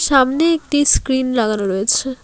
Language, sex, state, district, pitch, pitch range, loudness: Bengali, female, West Bengal, Alipurduar, 265 Hz, 230-290 Hz, -16 LUFS